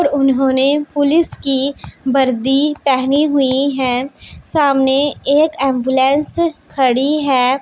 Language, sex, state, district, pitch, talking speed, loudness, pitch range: Hindi, female, Punjab, Pathankot, 275 Hz, 100 wpm, -15 LUFS, 265-290 Hz